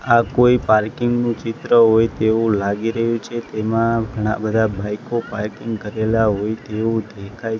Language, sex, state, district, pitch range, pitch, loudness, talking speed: Gujarati, male, Gujarat, Gandhinagar, 110-115 Hz, 110 Hz, -19 LUFS, 150 wpm